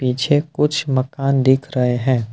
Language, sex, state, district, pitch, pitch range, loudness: Hindi, male, Assam, Kamrup Metropolitan, 135 Hz, 125-145 Hz, -18 LUFS